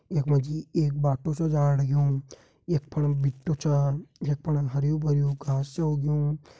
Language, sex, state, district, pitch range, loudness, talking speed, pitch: Hindi, male, Uttarakhand, Tehri Garhwal, 140-155 Hz, -26 LUFS, 155 wpm, 145 Hz